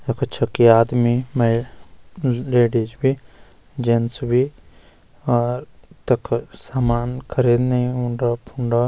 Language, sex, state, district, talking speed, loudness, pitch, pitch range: Garhwali, male, Uttarakhand, Uttarkashi, 95 wpm, -20 LUFS, 120 Hz, 115-125 Hz